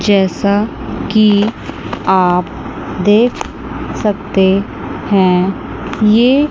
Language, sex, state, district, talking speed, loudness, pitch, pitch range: Hindi, female, Chandigarh, Chandigarh, 65 wpm, -14 LUFS, 205 Hz, 190-215 Hz